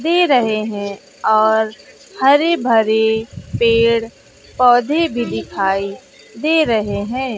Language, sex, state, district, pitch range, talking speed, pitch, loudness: Hindi, female, Bihar, West Champaran, 215-260 Hz, 105 wpm, 230 Hz, -16 LUFS